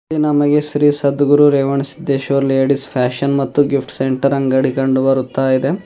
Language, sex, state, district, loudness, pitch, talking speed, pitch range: Kannada, male, Karnataka, Bidar, -15 LUFS, 140 Hz, 145 wpm, 135-145 Hz